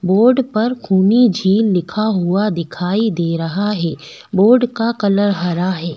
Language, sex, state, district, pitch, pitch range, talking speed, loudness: Hindi, female, Delhi, New Delhi, 200 Hz, 180-220 Hz, 150 wpm, -16 LUFS